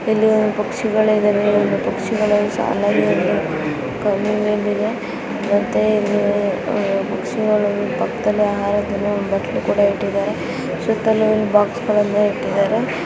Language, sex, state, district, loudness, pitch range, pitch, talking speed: Kannada, female, Karnataka, Bijapur, -18 LUFS, 205-215 Hz, 210 Hz, 90 wpm